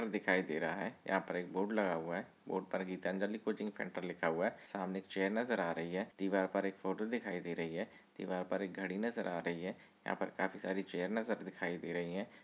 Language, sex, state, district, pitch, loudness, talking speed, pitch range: Hindi, male, West Bengal, Malda, 95 Hz, -39 LUFS, 245 wpm, 90-100 Hz